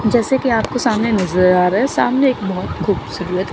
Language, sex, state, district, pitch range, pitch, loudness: Hindi, female, Chandigarh, Chandigarh, 185-245 Hz, 210 Hz, -16 LUFS